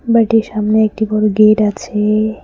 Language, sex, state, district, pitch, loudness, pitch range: Bengali, female, West Bengal, Cooch Behar, 215 Hz, -13 LUFS, 210-220 Hz